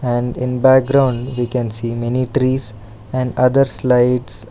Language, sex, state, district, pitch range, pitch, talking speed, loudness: English, male, Karnataka, Bangalore, 120-130 Hz, 125 Hz, 145 wpm, -16 LUFS